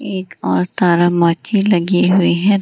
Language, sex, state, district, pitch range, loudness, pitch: Hindi, female, Bihar, Gaya, 170-190 Hz, -15 LUFS, 180 Hz